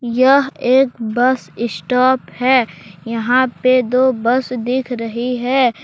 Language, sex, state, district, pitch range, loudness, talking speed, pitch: Hindi, male, Jharkhand, Deoghar, 235-260 Hz, -16 LUFS, 125 wpm, 250 Hz